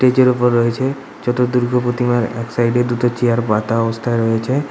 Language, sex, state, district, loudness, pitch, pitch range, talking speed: Bengali, male, West Bengal, Purulia, -17 LUFS, 120 Hz, 115-125 Hz, 190 wpm